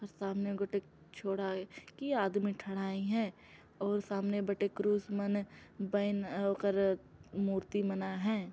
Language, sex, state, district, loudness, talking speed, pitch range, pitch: Chhattisgarhi, female, Chhattisgarh, Jashpur, -36 LUFS, 125 wpm, 195-205 Hz, 200 Hz